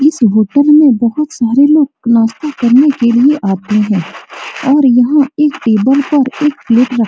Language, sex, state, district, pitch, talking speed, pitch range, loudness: Hindi, female, Bihar, Supaul, 265 Hz, 180 wpm, 230-290 Hz, -10 LUFS